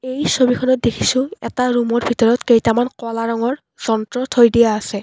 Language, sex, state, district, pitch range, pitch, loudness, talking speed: Assamese, female, Assam, Kamrup Metropolitan, 230-255 Hz, 240 Hz, -17 LUFS, 165 wpm